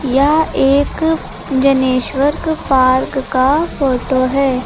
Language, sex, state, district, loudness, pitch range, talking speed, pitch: Hindi, female, Uttar Pradesh, Lucknow, -14 LUFS, 260-285 Hz, 90 wpm, 270 Hz